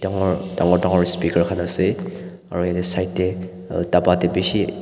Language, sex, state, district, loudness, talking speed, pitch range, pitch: Nagamese, male, Nagaland, Dimapur, -20 LUFS, 150 wpm, 90-95 Hz, 90 Hz